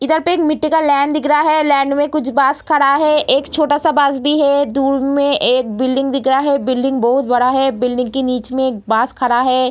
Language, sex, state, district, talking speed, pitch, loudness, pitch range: Hindi, female, Bihar, Samastipur, 245 wpm, 275 Hz, -15 LUFS, 255-295 Hz